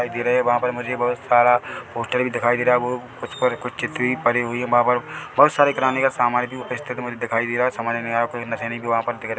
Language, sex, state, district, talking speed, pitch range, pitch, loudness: Hindi, male, Chhattisgarh, Bilaspur, 300 wpm, 120-125 Hz, 120 Hz, -21 LUFS